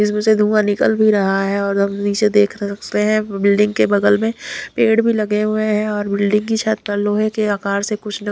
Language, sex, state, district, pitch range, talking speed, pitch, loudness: Hindi, female, Punjab, Kapurthala, 200-215 Hz, 240 wpm, 210 Hz, -17 LUFS